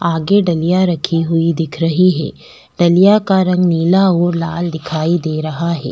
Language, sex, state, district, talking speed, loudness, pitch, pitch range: Hindi, female, Delhi, New Delhi, 170 wpm, -14 LUFS, 170 Hz, 165-180 Hz